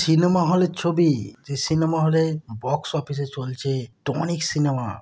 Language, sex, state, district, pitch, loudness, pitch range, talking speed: Bengali, male, West Bengal, Kolkata, 150 Hz, -23 LUFS, 135-160 Hz, 145 wpm